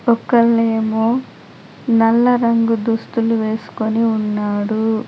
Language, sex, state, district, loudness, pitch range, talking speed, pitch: Telugu, female, Telangana, Adilabad, -17 LUFS, 220-230 Hz, 85 wpm, 225 Hz